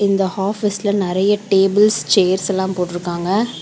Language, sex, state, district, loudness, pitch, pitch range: Tamil, female, Tamil Nadu, Chennai, -17 LUFS, 195 Hz, 190-205 Hz